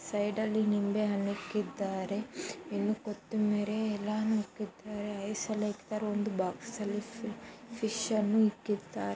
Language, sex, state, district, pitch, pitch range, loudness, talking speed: Kannada, female, Karnataka, Mysore, 210 Hz, 205-215 Hz, -34 LUFS, 40 wpm